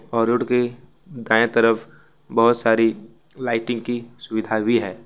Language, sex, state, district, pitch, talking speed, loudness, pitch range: Hindi, male, Jharkhand, Ranchi, 115 Hz, 140 wpm, -21 LUFS, 115-120 Hz